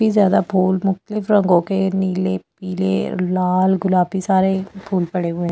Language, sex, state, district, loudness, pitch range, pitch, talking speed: Hindi, female, Delhi, New Delhi, -18 LUFS, 180-195 Hz, 190 Hz, 165 wpm